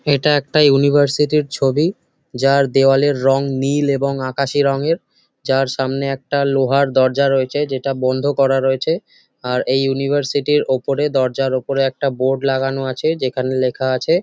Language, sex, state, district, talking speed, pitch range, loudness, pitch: Bengali, male, West Bengal, Jhargram, 145 wpm, 135-145 Hz, -17 LUFS, 135 Hz